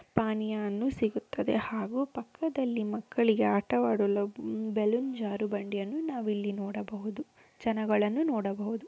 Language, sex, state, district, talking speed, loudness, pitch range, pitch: Kannada, female, Karnataka, Shimoga, 95 wpm, -31 LUFS, 205-235 Hz, 215 Hz